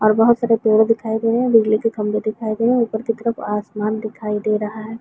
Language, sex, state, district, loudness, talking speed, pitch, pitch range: Hindi, female, Chhattisgarh, Bilaspur, -19 LUFS, 275 wpm, 220 Hz, 215-230 Hz